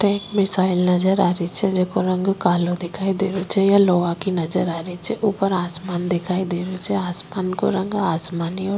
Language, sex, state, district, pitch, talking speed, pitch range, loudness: Rajasthani, female, Rajasthan, Nagaur, 185 Hz, 200 wpm, 175-195 Hz, -21 LUFS